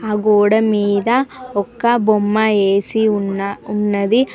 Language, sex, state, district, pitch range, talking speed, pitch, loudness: Telugu, female, Telangana, Mahabubabad, 200-220 Hz, 110 wpm, 210 Hz, -16 LUFS